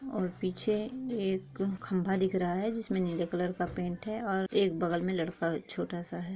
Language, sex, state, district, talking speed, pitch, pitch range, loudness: Hindi, female, Andhra Pradesh, Krishna, 200 wpm, 185 Hz, 175-205 Hz, -33 LUFS